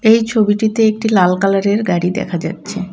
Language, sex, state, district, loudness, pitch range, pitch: Bengali, female, West Bengal, Cooch Behar, -15 LUFS, 185-220 Hz, 205 Hz